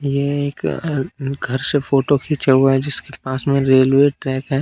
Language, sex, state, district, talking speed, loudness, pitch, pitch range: Hindi, male, Bihar, Kaimur, 195 wpm, -18 LUFS, 140 Hz, 135-145 Hz